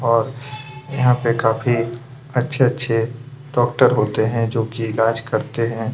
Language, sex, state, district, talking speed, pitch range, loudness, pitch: Hindi, male, Chhattisgarh, Kabirdham, 120 wpm, 115-130 Hz, -18 LUFS, 120 Hz